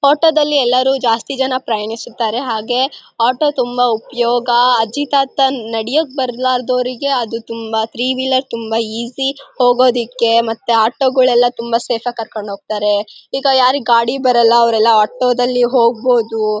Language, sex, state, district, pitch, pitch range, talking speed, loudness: Kannada, female, Karnataka, Bellary, 245 Hz, 230-260 Hz, 125 wpm, -15 LUFS